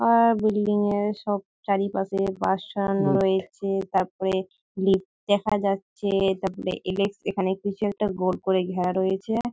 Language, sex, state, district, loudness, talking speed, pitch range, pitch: Bengali, female, West Bengal, Malda, -25 LUFS, 130 wpm, 190-205 Hz, 195 Hz